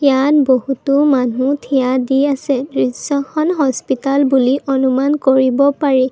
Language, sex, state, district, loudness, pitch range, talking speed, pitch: Assamese, female, Assam, Kamrup Metropolitan, -15 LUFS, 260-280 Hz, 115 wpm, 270 Hz